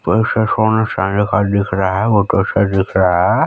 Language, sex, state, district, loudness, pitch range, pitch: Hindi, male, Chhattisgarh, Balrampur, -15 LUFS, 95-110 Hz, 100 Hz